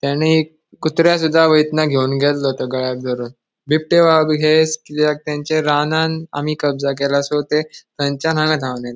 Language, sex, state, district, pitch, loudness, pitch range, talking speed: Konkani, male, Goa, North and South Goa, 150 Hz, -17 LUFS, 140-155 Hz, 160 wpm